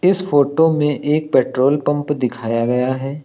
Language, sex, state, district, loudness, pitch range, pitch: Hindi, male, Uttar Pradesh, Lucknow, -17 LUFS, 130-150 Hz, 145 Hz